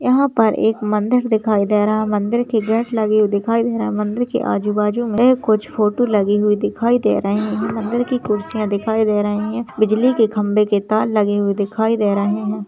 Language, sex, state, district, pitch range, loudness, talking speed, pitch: Hindi, female, Rajasthan, Nagaur, 210-225 Hz, -17 LUFS, 225 wpm, 215 Hz